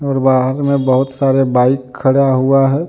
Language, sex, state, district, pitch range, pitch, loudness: Hindi, male, Jharkhand, Deoghar, 130-135 Hz, 135 Hz, -13 LUFS